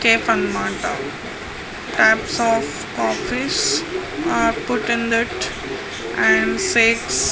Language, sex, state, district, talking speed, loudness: Telugu, female, Andhra Pradesh, Guntur, 90 wpm, -19 LUFS